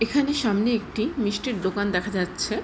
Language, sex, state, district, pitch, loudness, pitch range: Bengali, female, West Bengal, Jhargram, 215 Hz, -25 LUFS, 200-240 Hz